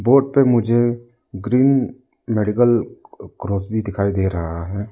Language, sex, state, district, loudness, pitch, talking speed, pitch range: Hindi, male, Arunachal Pradesh, Lower Dibang Valley, -18 LUFS, 115 Hz, 135 wpm, 100-125 Hz